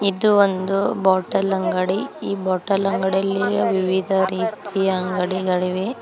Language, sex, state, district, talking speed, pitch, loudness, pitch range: Kannada, female, Karnataka, Koppal, 100 wpm, 190 Hz, -20 LUFS, 185-200 Hz